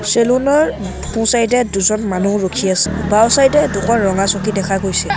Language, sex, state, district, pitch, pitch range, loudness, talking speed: Assamese, male, Assam, Sonitpur, 205 Hz, 195-235 Hz, -14 LUFS, 185 wpm